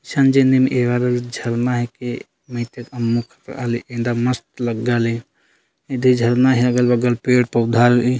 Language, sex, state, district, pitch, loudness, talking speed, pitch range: Sadri, male, Chhattisgarh, Jashpur, 120 Hz, -18 LUFS, 130 wpm, 120-125 Hz